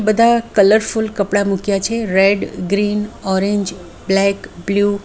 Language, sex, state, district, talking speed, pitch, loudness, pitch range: Gujarati, female, Gujarat, Valsad, 130 wpm, 200 Hz, -16 LUFS, 195-215 Hz